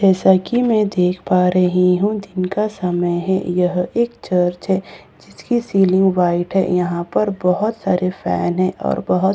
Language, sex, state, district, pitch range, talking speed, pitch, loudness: Hindi, female, Bihar, Katihar, 180-195 Hz, 185 wpm, 185 Hz, -17 LUFS